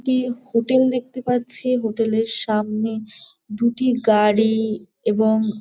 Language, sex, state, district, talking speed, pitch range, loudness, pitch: Bengali, female, West Bengal, Jalpaiguri, 105 wpm, 215-245 Hz, -20 LUFS, 225 Hz